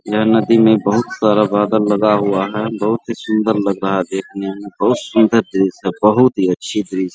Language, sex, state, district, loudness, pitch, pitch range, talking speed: Hindi, male, Bihar, Araria, -16 LUFS, 105 Hz, 95-110 Hz, 210 wpm